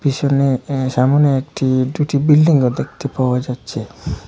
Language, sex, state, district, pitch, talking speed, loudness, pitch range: Bengali, male, Assam, Hailakandi, 135 Hz, 140 wpm, -16 LUFS, 125-140 Hz